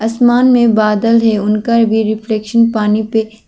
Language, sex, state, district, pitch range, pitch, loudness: Hindi, female, Arunachal Pradesh, Lower Dibang Valley, 215-230 Hz, 220 Hz, -12 LUFS